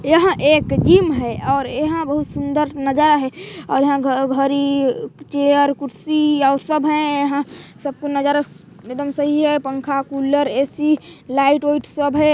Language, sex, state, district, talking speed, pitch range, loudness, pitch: Hindi, female, Chhattisgarh, Balrampur, 165 wpm, 275-300 Hz, -18 LUFS, 285 Hz